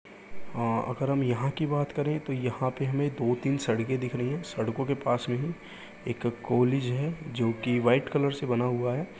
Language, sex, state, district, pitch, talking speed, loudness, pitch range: Hindi, male, Uttar Pradesh, Gorakhpur, 130 Hz, 210 wpm, -29 LUFS, 120-145 Hz